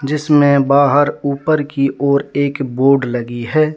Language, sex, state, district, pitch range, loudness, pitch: Hindi, male, Jharkhand, Deoghar, 135-145 Hz, -15 LUFS, 140 Hz